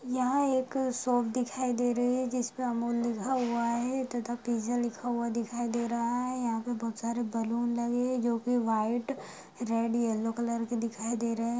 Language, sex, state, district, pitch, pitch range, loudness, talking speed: Hindi, female, Bihar, Sitamarhi, 235 Hz, 235-245 Hz, -31 LUFS, 205 wpm